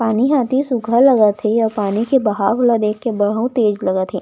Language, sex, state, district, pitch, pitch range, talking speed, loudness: Chhattisgarhi, female, Chhattisgarh, Raigarh, 220 Hz, 210-245 Hz, 240 wpm, -16 LUFS